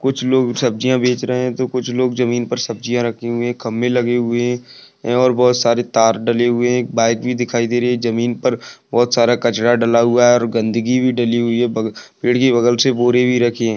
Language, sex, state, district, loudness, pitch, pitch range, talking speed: Hindi, male, Uttar Pradesh, Budaun, -16 LUFS, 120 Hz, 120-125 Hz, 235 wpm